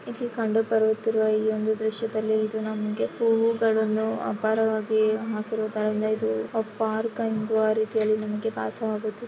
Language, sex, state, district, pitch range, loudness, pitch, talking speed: Kannada, female, Karnataka, Shimoga, 215-225 Hz, -25 LUFS, 220 Hz, 135 wpm